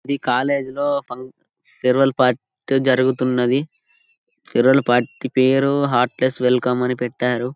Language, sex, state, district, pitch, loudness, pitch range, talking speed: Telugu, male, Telangana, Karimnagar, 130 Hz, -19 LUFS, 125-135 Hz, 120 wpm